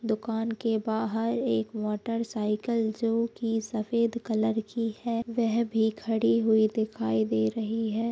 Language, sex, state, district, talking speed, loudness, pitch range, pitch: Hindi, female, Bihar, Bhagalpur, 150 wpm, -28 LUFS, 220-230 Hz, 225 Hz